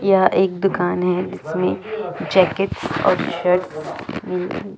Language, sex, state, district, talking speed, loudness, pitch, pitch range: Hindi, female, Chhattisgarh, Jashpur, 115 wpm, -20 LUFS, 180 Hz, 175-195 Hz